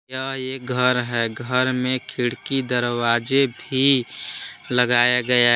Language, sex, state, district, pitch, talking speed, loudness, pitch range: Hindi, male, Jharkhand, Palamu, 125 Hz, 130 wpm, -20 LUFS, 120-130 Hz